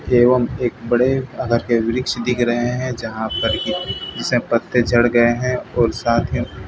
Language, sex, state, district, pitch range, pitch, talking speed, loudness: Hindi, male, Bihar, Katihar, 115-125 Hz, 120 Hz, 170 wpm, -19 LUFS